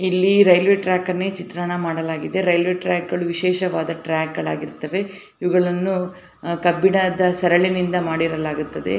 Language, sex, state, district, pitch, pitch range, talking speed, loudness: Kannada, female, Karnataka, Dharwad, 180 Hz, 170-185 Hz, 95 wpm, -20 LUFS